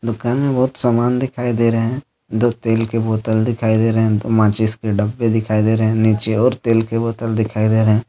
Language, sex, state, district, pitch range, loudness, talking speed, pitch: Hindi, male, Jharkhand, Deoghar, 110-120 Hz, -17 LUFS, 230 wpm, 115 Hz